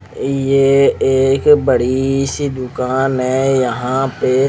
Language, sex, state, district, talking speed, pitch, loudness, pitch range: Hindi, male, Odisha, Khordha, 105 wpm, 135 Hz, -15 LUFS, 130-135 Hz